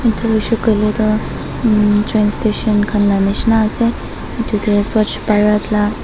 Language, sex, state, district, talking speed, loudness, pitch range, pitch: Nagamese, female, Nagaland, Dimapur, 160 wpm, -15 LUFS, 210-220 Hz, 215 Hz